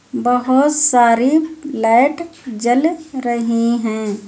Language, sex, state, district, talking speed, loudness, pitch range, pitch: Hindi, female, Uttar Pradesh, Lucknow, 85 wpm, -15 LUFS, 230-295 Hz, 245 Hz